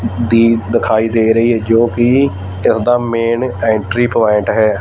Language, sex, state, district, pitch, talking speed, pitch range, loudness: Punjabi, male, Punjab, Fazilka, 115 Hz, 160 wpm, 110-120 Hz, -13 LUFS